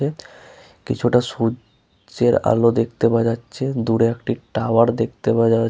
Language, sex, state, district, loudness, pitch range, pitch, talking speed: Bengali, male, West Bengal, Paschim Medinipur, -19 LUFS, 115-120 Hz, 115 Hz, 125 wpm